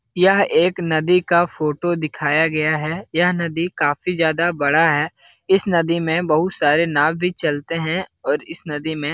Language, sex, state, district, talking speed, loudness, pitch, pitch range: Hindi, male, Bihar, Jahanabad, 185 wpm, -19 LUFS, 165 Hz, 155-175 Hz